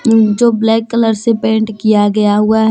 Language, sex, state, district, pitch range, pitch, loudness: Hindi, female, Jharkhand, Deoghar, 215-225 Hz, 220 Hz, -12 LUFS